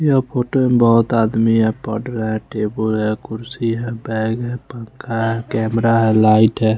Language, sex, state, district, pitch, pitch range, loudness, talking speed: Hindi, male, Chandigarh, Chandigarh, 115 Hz, 110-120 Hz, -17 LUFS, 185 wpm